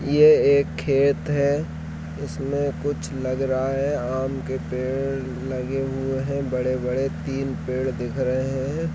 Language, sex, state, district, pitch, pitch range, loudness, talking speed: Hindi, male, Jharkhand, Sahebganj, 135 Hz, 130-140 Hz, -24 LUFS, 160 wpm